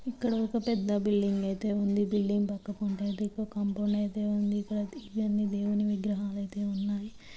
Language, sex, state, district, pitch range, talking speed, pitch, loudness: Telugu, female, Andhra Pradesh, Guntur, 205-210 Hz, 130 wpm, 205 Hz, -31 LUFS